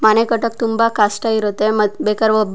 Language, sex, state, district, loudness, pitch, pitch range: Kannada, female, Karnataka, Chamarajanagar, -16 LUFS, 215 Hz, 210-230 Hz